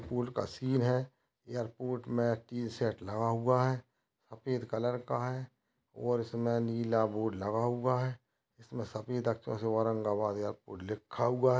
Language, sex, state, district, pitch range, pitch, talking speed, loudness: Hindi, male, Maharashtra, Aurangabad, 110-125 Hz, 120 Hz, 150 wpm, -34 LUFS